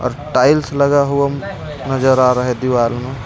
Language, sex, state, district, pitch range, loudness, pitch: Hindi, male, Jharkhand, Ranchi, 125-140 Hz, -15 LUFS, 130 Hz